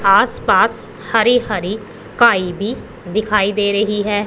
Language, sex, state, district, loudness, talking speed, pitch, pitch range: Hindi, female, Punjab, Pathankot, -16 LUFS, 125 wpm, 210 Hz, 200-220 Hz